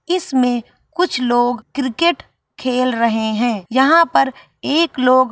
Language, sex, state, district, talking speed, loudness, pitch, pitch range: Hindi, female, Bihar, Saharsa, 135 wpm, -17 LUFS, 255 Hz, 240-280 Hz